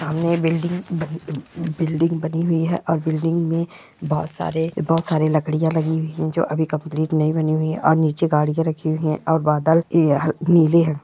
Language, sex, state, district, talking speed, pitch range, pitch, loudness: Hindi, female, Bihar, Jahanabad, 210 wpm, 155-165 Hz, 160 Hz, -20 LUFS